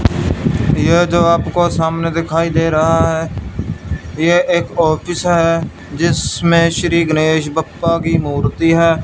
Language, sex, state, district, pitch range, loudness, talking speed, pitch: Hindi, male, Punjab, Fazilka, 160-170 Hz, -15 LUFS, 125 wpm, 165 Hz